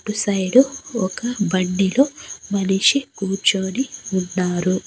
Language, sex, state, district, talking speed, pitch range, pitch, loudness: Telugu, female, Andhra Pradesh, Annamaya, 85 wpm, 190-240 Hz, 195 Hz, -20 LUFS